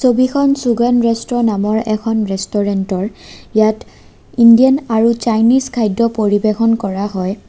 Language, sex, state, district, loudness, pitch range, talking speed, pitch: Assamese, female, Assam, Kamrup Metropolitan, -14 LUFS, 210-240 Hz, 120 wpm, 225 Hz